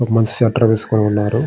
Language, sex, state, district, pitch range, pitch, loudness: Telugu, male, Andhra Pradesh, Srikakulam, 110-120 Hz, 115 Hz, -15 LUFS